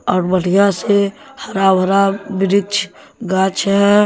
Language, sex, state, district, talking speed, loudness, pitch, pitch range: Hindi, male, Jharkhand, Deoghar, 120 wpm, -15 LUFS, 195 Hz, 190-200 Hz